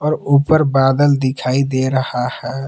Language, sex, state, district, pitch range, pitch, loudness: Hindi, male, Jharkhand, Palamu, 130-145 Hz, 135 Hz, -16 LUFS